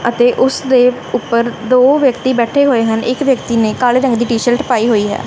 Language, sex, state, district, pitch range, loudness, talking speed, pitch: Punjabi, female, Punjab, Kapurthala, 235-260 Hz, -13 LUFS, 205 wpm, 245 Hz